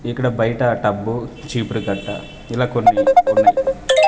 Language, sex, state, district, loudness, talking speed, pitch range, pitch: Telugu, male, Andhra Pradesh, Manyam, -17 LUFS, 115 wpm, 115-180 Hz, 120 Hz